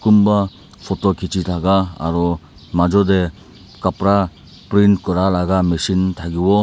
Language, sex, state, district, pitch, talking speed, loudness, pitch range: Nagamese, male, Nagaland, Dimapur, 95 Hz, 115 wpm, -17 LUFS, 90-100 Hz